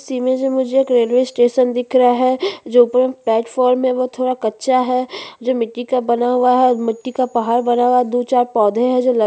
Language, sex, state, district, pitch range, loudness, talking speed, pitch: Hindi, female, Chhattisgarh, Bastar, 240-255 Hz, -16 LUFS, 235 wpm, 250 Hz